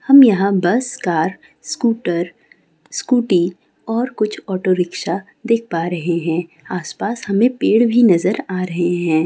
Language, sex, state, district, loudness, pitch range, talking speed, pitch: Hindi, female, West Bengal, Kolkata, -18 LUFS, 175-230 Hz, 140 wpm, 190 Hz